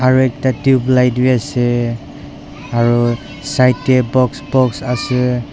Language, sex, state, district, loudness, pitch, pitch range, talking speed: Nagamese, male, Nagaland, Dimapur, -15 LUFS, 125 Hz, 120-130 Hz, 120 wpm